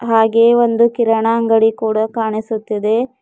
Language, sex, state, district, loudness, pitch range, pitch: Kannada, female, Karnataka, Bidar, -15 LUFS, 220-230 Hz, 225 Hz